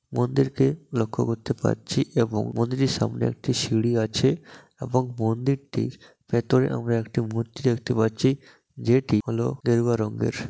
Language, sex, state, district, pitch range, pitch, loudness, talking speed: Bengali, male, West Bengal, Dakshin Dinajpur, 115-130 Hz, 120 Hz, -25 LUFS, 125 wpm